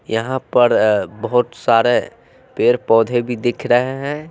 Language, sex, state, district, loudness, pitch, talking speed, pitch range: Hindi, male, Bihar, West Champaran, -17 LUFS, 120 Hz, 155 wpm, 115-130 Hz